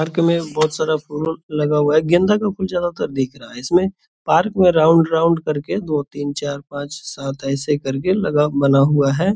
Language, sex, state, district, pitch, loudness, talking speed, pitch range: Hindi, male, Bihar, Purnia, 155 Hz, -18 LUFS, 210 wpm, 145-170 Hz